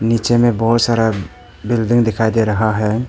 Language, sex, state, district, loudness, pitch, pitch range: Hindi, male, Arunachal Pradesh, Papum Pare, -15 LUFS, 115 Hz, 110-120 Hz